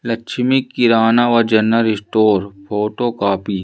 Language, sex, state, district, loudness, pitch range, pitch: Hindi, male, Madhya Pradesh, Umaria, -16 LUFS, 105-120 Hz, 115 Hz